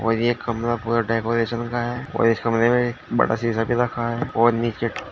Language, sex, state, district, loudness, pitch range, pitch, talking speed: Hindi, male, Uttar Pradesh, Shamli, -22 LUFS, 115-120 Hz, 115 Hz, 200 wpm